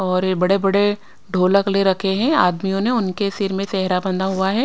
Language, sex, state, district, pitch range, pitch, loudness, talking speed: Hindi, female, Himachal Pradesh, Shimla, 190-200 Hz, 195 Hz, -19 LUFS, 205 wpm